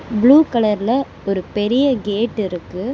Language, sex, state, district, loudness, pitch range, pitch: Tamil, female, Tamil Nadu, Chennai, -17 LUFS, 205-255 Hz, 220 Hz